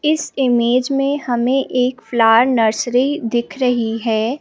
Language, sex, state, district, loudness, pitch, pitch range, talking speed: Hindi, female, Madhya Pradesh, Bhopal, -17 LUFS, 250 Hz, 235-265 Hz, 135 wpm